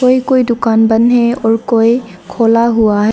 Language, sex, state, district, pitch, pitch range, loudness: Hindi, female, Arunachal Pradesh, Lower Dibang Valley, 230 Hz, 225-240 Hz, -11 LUFS